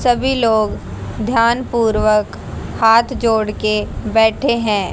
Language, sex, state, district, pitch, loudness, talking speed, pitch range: Hindi, female, Haryana, Jhajjar, 225 Hz, -16 LUFS, 110 wpm, 215-235 Hz